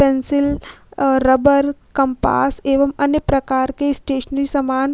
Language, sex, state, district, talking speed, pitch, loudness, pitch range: Hindi, female, Uttar Pradesh, Hamirpur, 135 wpm, 275 Hz, -17 LUFS, 265-285 Hz